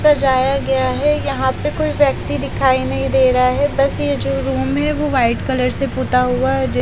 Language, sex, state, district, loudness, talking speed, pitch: Hindi, female, Haryana, Charkhi Dadri, -16 LUFS, 220 wpm, 250 Hz